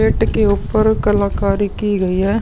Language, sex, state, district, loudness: Hindi, male, Uttar Pradesh, Muzaffarnagar, -16 LUFS